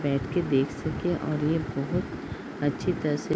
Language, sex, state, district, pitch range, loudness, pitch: Hindi, female, Uttar Pradesh, Deoria, 140-165 Hz, -28 LUFS, 150 Hz